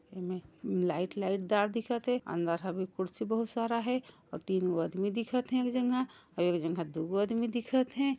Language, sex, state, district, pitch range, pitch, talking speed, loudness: Hindi, female, Chhattisgarh, Sarguja, 180-245 Hz, 205 Hz, 210 wpm, -33 LUFS